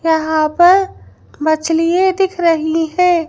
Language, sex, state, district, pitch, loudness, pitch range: Hindi, female, Madhya Pradesh, Bhopal, 330 Hz, -14 LUFS, 315-360 Hz